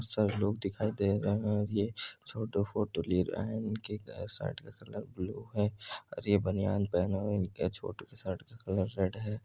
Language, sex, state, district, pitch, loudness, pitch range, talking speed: Hindi, male, Andhra Pradesh, Chittoor, 105 Hz, -34 LUFS, 100-110 Hz, 220 wpm